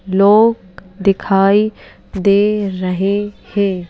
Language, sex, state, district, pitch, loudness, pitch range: Hindi, female, Madhya Pradesh, Bhopal, 200 Hz, -15 LUFS, 190-205 Hz